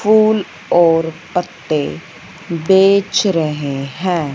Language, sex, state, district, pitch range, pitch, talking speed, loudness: Hindi, female, Punjab, Fazilka, 160-190 Hz, 170 Hz, 85 wpm, -16 LUFS